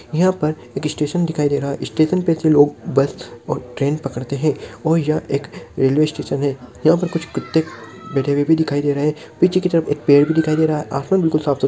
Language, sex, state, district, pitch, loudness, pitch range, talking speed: Hindi, male, Rajasthan, Nagaur, 150 Hz, -18 LUFS, 140-160 Hz, 245 wpm